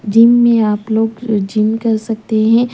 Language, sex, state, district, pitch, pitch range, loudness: Hindi, female, Punjab, Pathankot, 225 Hz, 215-230 Hz, -13 LUFS